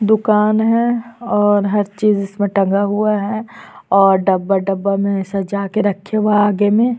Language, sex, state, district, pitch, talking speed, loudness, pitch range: Hindi, female, Chhattisgarh, Sukma, 205 Hz, 180 wpm, -16 LUFS, 195-215 Hz